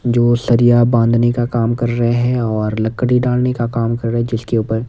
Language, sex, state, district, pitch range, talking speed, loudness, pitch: Hindi, male, Himachal Pradesh, Shimla, 115-120 Hz, 220 wpm, -15 LUFS, 120 Hz